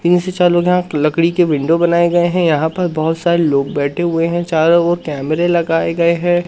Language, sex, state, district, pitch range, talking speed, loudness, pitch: Hindi, male, Madhya Pradesh, Umaria, 160-175 Hz, 230 wpm, -14 LUFS, 170 Hz